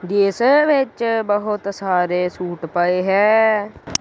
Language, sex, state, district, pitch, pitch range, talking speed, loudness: Punjabi, female, Punjab, Kapurthala, 200 Hz, 180-220 Hz, 105 wpm, -18 LUFS